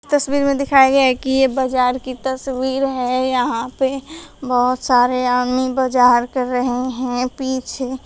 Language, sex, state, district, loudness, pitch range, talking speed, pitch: Hindi, female, Uttar Pradesh, Shamli, -17 LUFS, 250-265 Hz, 165 wpm, 260 Hz